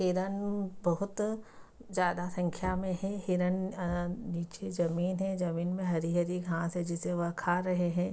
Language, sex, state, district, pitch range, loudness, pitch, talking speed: Hindi, female, Bihar, Begusarai, 175-190 Hz, -33 LUFS, 180 Hz, 155 wpm